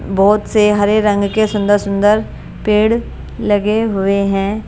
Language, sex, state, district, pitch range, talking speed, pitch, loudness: Hindi, female, Punjab, Kapurthala, 200-215 Hz, 140 wpm, 210 Hz, -14 LUFS